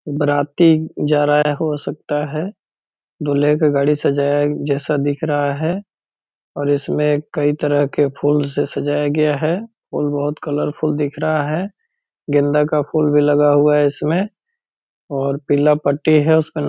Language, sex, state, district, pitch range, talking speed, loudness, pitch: Hindi, male, Bihar, Purnia, 145-155 Hz, 165 wpm, -17 LUFS, 150 Hz